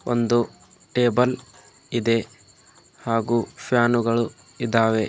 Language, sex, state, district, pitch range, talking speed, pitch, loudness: Kannada, male, Karnataka, Bidar, 115-120 Hz, 70 wpm, 120 Hz, -22 LUFS